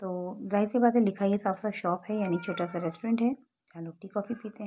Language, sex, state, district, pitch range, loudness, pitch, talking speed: Hindi, female, Uttar Pradesh, Etah, 180-220 Hz, -30 LUFS, 205 Hz, 270 wpm